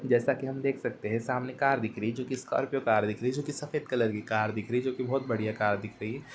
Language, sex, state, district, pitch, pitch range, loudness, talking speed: Hindi, male, Uttar Pradesh, Varanasi, 125 Hz, 110-135 Hz, -30 LUFS, 330 wpm